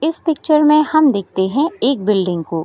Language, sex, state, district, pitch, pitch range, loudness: Hindi, female, Bihar, Sitamarhi, 280 Hz, 190-305 Hz, -15 LUFS